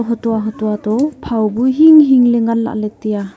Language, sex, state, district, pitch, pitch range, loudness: Wancho, female, Arunachal Pradesh, Longding, 230 Hz, 215-245 Hz, -13 LUFS